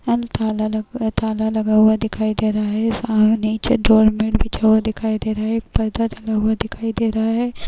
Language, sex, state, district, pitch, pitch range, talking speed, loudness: Hindi, female, Uttar Pradesh, Jyotiba Phule Nagar, 220 Hz, 215-225 Hz, 210 wpm, -19 LUFS